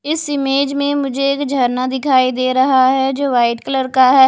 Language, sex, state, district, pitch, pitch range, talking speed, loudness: Hindi, female, Odisha, Khordha, 265 Hz, 255-280 Hz, 210 wpm, -15 LUFS